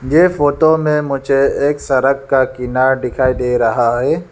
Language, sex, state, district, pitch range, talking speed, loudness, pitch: Hindi, male, Arunachal Pradesh, Lower Dibang Valley, 130-145 Hz, 165 wpm, -14 LUFS, 135 Hz